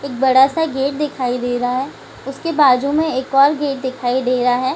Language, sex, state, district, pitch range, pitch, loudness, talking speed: Hindi, female, Bihar, Gaya, 250-285 Hz, 265 Hz, -17 LUFS, 225 wpm